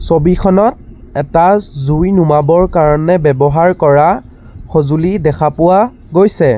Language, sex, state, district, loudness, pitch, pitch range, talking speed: Assamese, male, Assam, Sonitpur, -11 LUFS, 165 Hz, 150-180 Hz, 100 wpm